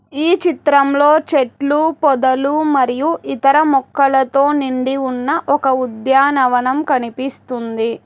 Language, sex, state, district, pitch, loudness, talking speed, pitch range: Telugu, female, Telangana, Hyderabad, 275 Hz, -15 LUFS, 90 wpm, 260-290 Hz